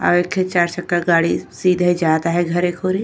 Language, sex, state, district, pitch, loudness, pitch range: Bhojpuri, female, Uttar Pradesh, Ghazipur, 175 Hz, -18 LUFS, 170-180 Hz